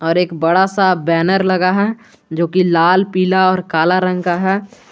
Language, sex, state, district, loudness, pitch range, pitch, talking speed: Hindi, male, Jharkhand, Garhwa, -15 LUFS, 170-190 Hz, 185 Hz, 195 wpm